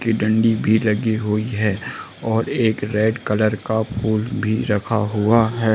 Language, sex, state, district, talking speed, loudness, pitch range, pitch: Hindi, male, Bihar, Muzaffarpur, 165 wpm, -20 LUFS, 105-115 Hz, 110 Hz